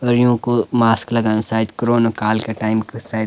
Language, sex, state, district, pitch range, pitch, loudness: Garhwali, male, Uttarakhand, Uttarkashi, 110-120 Hz, 115 Hz, -17 LUFS